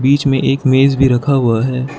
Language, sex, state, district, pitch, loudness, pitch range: Hindi, male, Arunachal Pradesh, Lower Dibang Valley, 135 Hz, -13 LUFS, 130-135 Hz